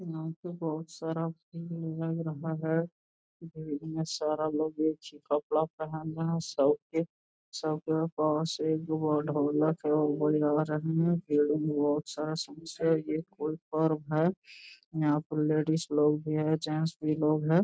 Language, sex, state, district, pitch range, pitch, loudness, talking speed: Hindi, male, Bihar, Jamui, 150-160 Hz, 155 Hz, -31 LUFS, 145 wpm